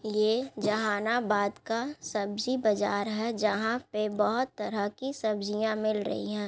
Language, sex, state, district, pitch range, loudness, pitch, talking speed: Hindi, female, Bihar, Gaya, 210-230 Hz, -30 LUFS, 215 Hz, 155 wpm